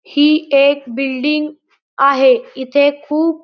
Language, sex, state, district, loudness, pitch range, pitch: Marathi, male, Maharashtra, Pune, -14 LUFS, 275-310 Hz, 290 Hz